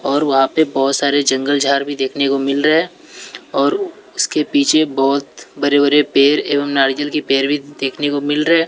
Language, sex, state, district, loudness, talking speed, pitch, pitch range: Hindi, male, Bihar, West Champaran, -16 LUFS, 205 wpm, 145 Hz, 140-150 Hz